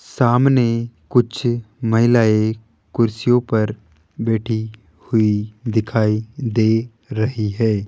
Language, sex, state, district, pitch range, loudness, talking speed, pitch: Hindi, male, Rajasthan, Jaipur, 110-120 Hz, -19 LUFS, 85 wpm, 110 Hz